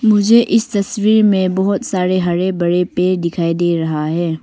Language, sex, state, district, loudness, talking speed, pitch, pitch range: Hindi, female, Arunachal Pradesh, Longding, -15 LUFS, 175 wpm, 185 Hz, 175-205 Hz